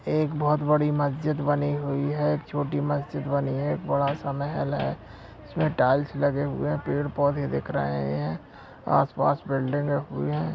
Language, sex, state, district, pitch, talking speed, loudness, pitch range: Hindi, male, Bihar, Bhagalpur, 145 Hz, 165 wpm, -26 LUFS, 140-145 Hz